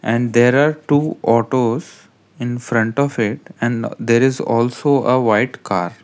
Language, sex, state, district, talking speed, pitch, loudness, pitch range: English, male, Karnataka, Bangalore, 160 wpm, 120 Hz, -17 LUFS, 115-130 Hz